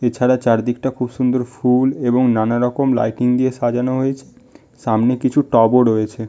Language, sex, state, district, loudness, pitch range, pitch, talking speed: Bengali, male, West Bengal, Malda, -17 LUFS, 120-130 Hz, 125 Hz, 155 wpm